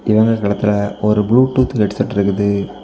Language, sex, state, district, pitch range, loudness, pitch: Tamil, male, Tamil Nadu, Kanyakumari, 100-115 Hz, -15 LUFS, 105 Hz